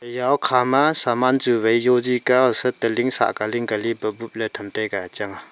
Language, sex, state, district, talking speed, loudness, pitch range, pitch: Wancho, male, Arunachal Pradesh, Longding, 205 wpm, -18 LUFS, 110-125 Hz, 120 Hz